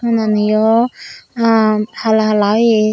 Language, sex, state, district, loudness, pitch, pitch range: Chakma, female, Tripura, Dhalai, -14 LUFS, 220 Hz, 215-230 Hz